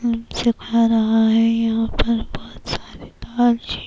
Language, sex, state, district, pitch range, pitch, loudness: Urdu, female, Bihar, Kishanganj, 225-235 Hz, 230 Hz, -19 LUFS